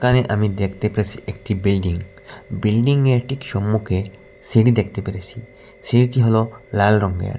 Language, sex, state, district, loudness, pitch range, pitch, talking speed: Bengali, male, Assam, Hailakandi, -19 LUFS, 100-120 Hz, 105 Hz, 140 wpm